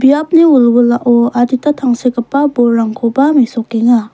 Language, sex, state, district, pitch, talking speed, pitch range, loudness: Garo, female, Meghalaya, West Garo Hills, 245 Hz, 85 wpm, 235-275 Hz, -11 LUFS